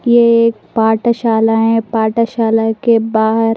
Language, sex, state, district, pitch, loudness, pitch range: Hindi, female, Delhi, New Delhi, 225 Hz, -13 LUFS, 220-230 Hz